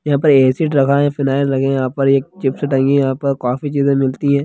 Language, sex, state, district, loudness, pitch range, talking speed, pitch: Hindi, male, Bihar, Sitamarhi, -15 LUFS, 135-140 Hz, 270 wpm, 140 Hz